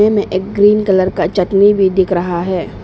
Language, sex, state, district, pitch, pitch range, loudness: Hindi, female, Arunachal Pradesh, Papum Pare, 190 Hz, 180-205 Hz, -13 LUFS